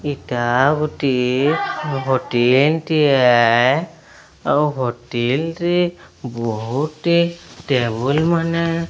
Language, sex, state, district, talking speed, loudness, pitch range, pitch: Odia, male, Odisha, Sambalpur, 75 wpm, -18 LUFS, 125-165 Hz, 140 Hz